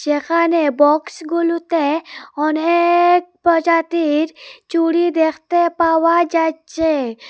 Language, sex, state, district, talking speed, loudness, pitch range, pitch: Bengali, female, Assam, Hailakandi, 65 wpm, -16 LUFS, 315-340 Hz, 330 Hz